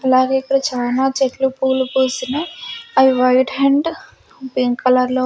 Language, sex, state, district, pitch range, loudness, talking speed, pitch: Telugu, female, Andhra Pradesh, Sri Satya Sai, 255-275 Hz, -17 LUFS, 135 wpm, 265 Hz